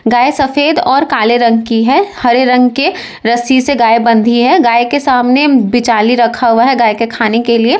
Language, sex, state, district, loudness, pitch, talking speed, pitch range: Hindi, female, Uttar Pradesh, Lalitpur, -10 LUFS, 240 Hz, 200 wpm, 230-270 Hz